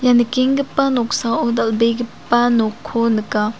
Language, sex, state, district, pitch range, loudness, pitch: Garo, female, Meghalaya, South Garo Hills, 230-245 Hz, -17 LUFS, 235 Hz